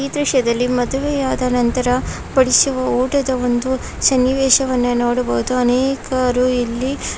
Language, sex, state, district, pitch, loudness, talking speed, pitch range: Kannada, female, Karnataka, Mysore, 255 Hz, -17 LUFS, 100 wpm, 245-265 Hz